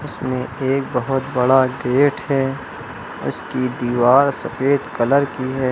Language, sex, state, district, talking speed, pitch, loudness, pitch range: Hindi, male, Uttar Pradesh, Lucknow, 125 wpm, 130 Hz, -19 LUFS, 125-135 Hz